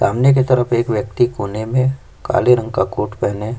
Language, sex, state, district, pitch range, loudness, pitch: Hindi, male, Chhattisgarh, Kabirdham, 110-125 Hz, -17 LUFS, 120 Hz